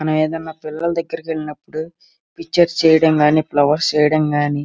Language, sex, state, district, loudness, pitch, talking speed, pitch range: Telugu, female, Andhra Pradesh, Krishna, -17 LUFS, 155 Hz, 155 wpm, 150-165 Hz